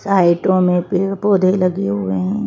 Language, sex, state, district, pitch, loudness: Hindi, female, Madhya Pradesh, Bhopal, 185 Hz, -16 LUFS